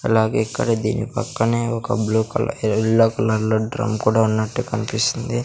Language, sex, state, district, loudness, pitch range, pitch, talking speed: Telugu, male, Andhra Pradesh, Sri Satya Sai, -20 LUFS, 110-115 Hz, 110 Hz, 145 wpm